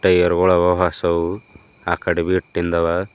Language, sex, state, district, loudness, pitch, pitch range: Kannada, male, Karnataka, Bidar, -18 LUFS, 90 Hz, 85-90 Hz